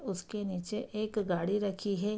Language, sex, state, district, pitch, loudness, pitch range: Hindi, female, Bihar, Araria, 205 Hz, -34 LUFS, 195-215 Hz